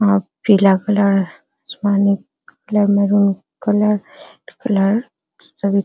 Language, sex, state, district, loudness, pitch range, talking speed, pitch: Hindi, female, Bihar, Araria, -17 LUFS, 200-210 Hz, 100 wpm, 205 Hz